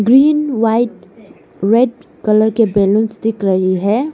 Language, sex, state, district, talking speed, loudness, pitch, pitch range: Hindi, female, Arunachal Pradesh, Lower Dibang Valley, 130 wpm, -14 LUFS, 220 Hz, 205-240 Hz